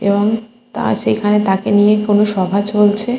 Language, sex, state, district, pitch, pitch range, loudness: Bengali, female, West Bengal, Kolkata, 210 Hz, 205-215 Hz, -14 LUFS